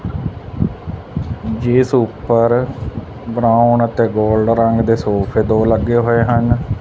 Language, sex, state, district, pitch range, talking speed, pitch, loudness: Punjabi, male, Punjab, Fazilka, 110-120 Hz, 105 wpm, 115 Hz, -15 LUFS